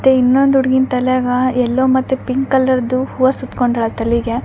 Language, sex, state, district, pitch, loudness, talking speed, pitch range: Kannada, female, Karnataka, Raichur, 255 Hz, -15 LUFS, 150 wpm, 250-260 Hz